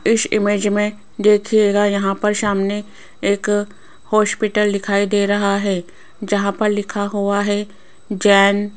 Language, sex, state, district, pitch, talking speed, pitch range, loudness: Hindi, female, Rajasthan, Jaipur, 205 Hz, 135 wpm, 200-210 Hz, -17 LUFS